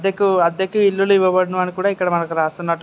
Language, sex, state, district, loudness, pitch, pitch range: Telugu, male, Andhra Pradesh, Guntur, -17 LUFS, 185 Hz, 170-195 Hz